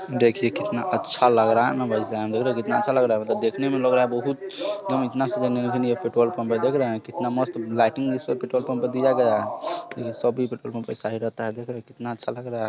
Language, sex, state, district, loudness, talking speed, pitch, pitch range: Hindi, male, Bihar, Sitamarhi, -24 LUFS, 280 wpm, 125 Hz, 115-130 Hz